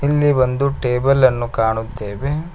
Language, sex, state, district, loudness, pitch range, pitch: Kannada, male, Karnataka, Koppal, -18 LUFS, 120-140 Hz, 130 Hz